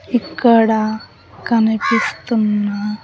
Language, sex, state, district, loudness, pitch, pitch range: Telugu, female, Andhra Pradesh, Sri Satya Sai, -16 LUFS, 220 Hz, 215-230 Hz